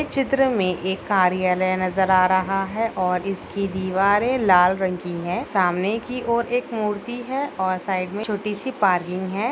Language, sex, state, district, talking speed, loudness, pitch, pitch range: Hindi, female, Bihar, Darbhanga, 170 wpm, -22 LUFS, 195 Hz, 185-230 Hz